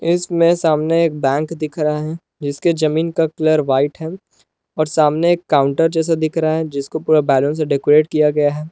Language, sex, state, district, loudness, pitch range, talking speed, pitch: Hindi, male, Jharkhand, Palamu, -17 LUFS, 150-165 Hz, 190 wpm, 155 Hz